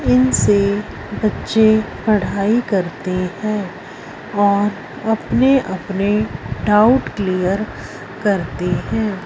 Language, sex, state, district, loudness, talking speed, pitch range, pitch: Hindi, female, Punjab, Fazilka, -17 LUFS, 85 wpm, 185-215 Hz, 205 Hz